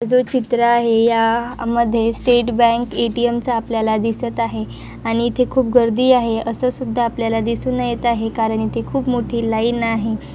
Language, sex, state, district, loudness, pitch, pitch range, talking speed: Marathi, female, Maharashtra, Nagpur, -18 LUFS, 235 Hz, 225-240 Hz, 180 wpm